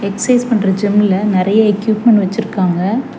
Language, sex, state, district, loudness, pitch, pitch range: Tamil, female, Tamil Nadu, Chennai, -13 LUFS, 210 Hz, 195-220 Hz